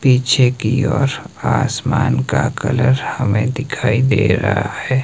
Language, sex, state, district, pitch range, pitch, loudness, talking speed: Hindi, male, Himachal Pradesh, Shimla, 120-135 Hz, 130 Hz, -16 LUFS, 130 wpm